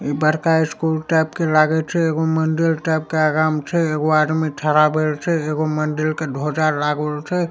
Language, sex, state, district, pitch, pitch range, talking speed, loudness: Maithili, male, Bihar, Supaul, 155 Hz, 155-160 Hz, 200 wpm, -19 LUFS